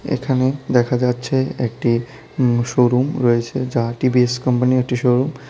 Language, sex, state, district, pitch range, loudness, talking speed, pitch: Bengali, male, Tripura, South Tripura, 120-130 Hz, -18 LUFS, 155 wpm, 125 Hz